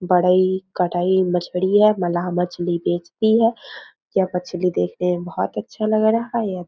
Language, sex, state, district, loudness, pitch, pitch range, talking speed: Hindi, female, Bihar, Muzaffarpur, -20 LUFS, 180 Hz, 175-195 Hz, 190 wpm